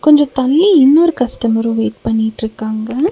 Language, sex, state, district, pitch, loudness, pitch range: Tamil, female, Tamil Nadu, Nilgiris, 245 Hz, -13 LUFS, 225-300 Hz